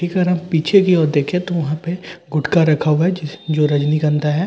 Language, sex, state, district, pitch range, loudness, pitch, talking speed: Hindi, male, Bihar, Katihar, 150-180 Hz, -17 LUFS, 160 Hz, 185 wpm